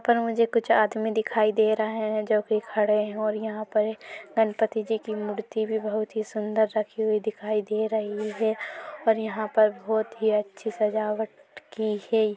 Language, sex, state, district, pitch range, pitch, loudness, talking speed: Hindi, female, Chhattisgarh, Korba, 215-220 Hz, 220 Hz, -26 LUFS, 190 wpm